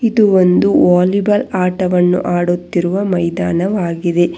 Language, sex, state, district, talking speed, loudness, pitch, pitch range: Kannada, female, Karnataka, Bangalore, 80 wpm, -14 LUFS, 180 Hz, 175-195 Hz